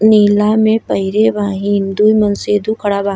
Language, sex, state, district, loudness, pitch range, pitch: Bhojpuri, female, Uttar Pradesh, Gorakhpur, -13 LUFS, 200-215 Hz, 205 Hz